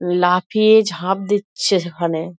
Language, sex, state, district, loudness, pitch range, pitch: Bengali, female, West Bengal, Dakshin Dinajpur, -17 LUFS, 175-205 Hz, 180 Hz